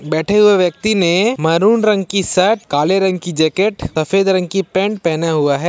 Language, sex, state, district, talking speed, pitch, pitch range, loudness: Hindi, male, Jharkhand, Ranchi, 200 wpm, 190 Hz, 165-205 Hz, -15 LUFS